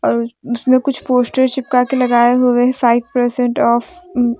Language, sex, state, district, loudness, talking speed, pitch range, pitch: Hindi, female, Jharkhand, Deoghar, -15 LUFS, 165 wpm, 240-260 Hz, 250 Hz